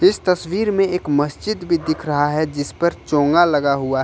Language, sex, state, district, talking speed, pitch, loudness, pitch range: Hindi, male, Jharkhand, Ranchi, 225 wpm, 155 Hz, -19 LUFS, 145-180 Hz